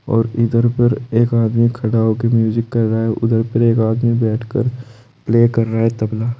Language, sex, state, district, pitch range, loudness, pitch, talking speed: Hindi, male, Uttar Pradesh, Saharanpur, 115-120 Hz, -16 LUFS, 115 Hz, 195 wpm